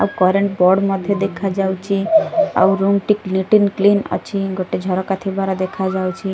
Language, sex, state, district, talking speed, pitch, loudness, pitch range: Odia, female, Odisha, Malkangiri, 140 wpm, 195 Hz, -17 LUFS, 190-200 Hz